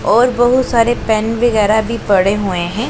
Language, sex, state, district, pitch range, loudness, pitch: Hindi, female, Punjab, Pathankot, 210-240 Hz, -14 LUFS, 225 Hz